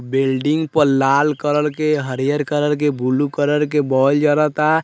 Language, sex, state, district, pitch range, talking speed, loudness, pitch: Bhojpuri, male, Bihar, Muzaffarpur, 135-150 Hz, 160 wpm, -17 LUFS, 145 Hz